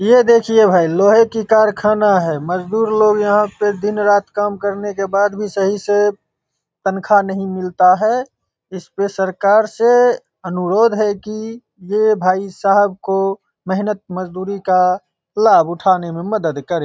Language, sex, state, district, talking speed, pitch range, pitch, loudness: Hindi, male, Bihar, Begusarai, 145 wpm, 185-215 Hz, 200 Hz, -15 LUFS